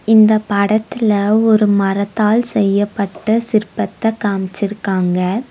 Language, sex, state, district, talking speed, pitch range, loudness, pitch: Tamil, female, Tamil Nadu, Nilgiris, 75 wpm, 200-220 Hz, -15 LUFS, 210 Hz